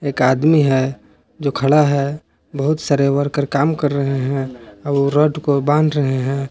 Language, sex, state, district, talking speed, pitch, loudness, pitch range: Hindi, male, Jharkhand, Palamu, 185 wpm, 140 Hz, -17 LUFS, 135-150 Hz